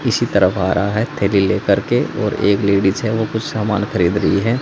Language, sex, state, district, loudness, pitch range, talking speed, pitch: Hindi, male, Haryana, Jhajjar, -17 LUFS, 100-110 Hz, 235 wpm, 100 Hz